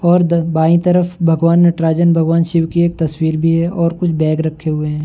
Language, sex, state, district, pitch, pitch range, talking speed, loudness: Hindi, male, Uttar Pradesh, Varanasi, 165 Hz, 160-170 Hz, 225 wpm, -14 LUFS